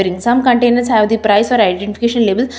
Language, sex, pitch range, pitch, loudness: English, female, 205-245 Hz, 230 Hz, -13 LUFS